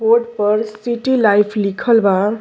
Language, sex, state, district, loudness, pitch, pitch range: Bhojpuri, female, Uttar Pradesh, Deoria, -15 LUFS, 215 Hz, 205-235 Hz